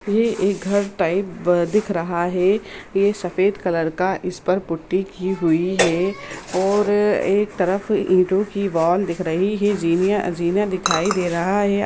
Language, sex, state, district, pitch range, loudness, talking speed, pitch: Hindi, female, Bihar, Supaul, 175-200 Hz, -20 LUFS, 165 wpm, 190 Hz